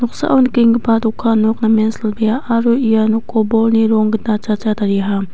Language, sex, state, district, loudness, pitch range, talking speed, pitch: Garo, female, Meghalaya, West Garo Hills, -14 LUFS, 215-230 Hz, 145 wpm, 220 Hz